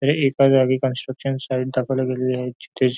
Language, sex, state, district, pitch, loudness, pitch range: Marathi, male, Maharashtra, Nagpur, 130 Hz, -21 LUFS, 130-135 Hz